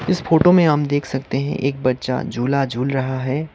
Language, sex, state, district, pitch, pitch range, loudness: Hindi, male, Sikkim, Gangtok, 135 Hz, 130-150 Hz, -19 LUFS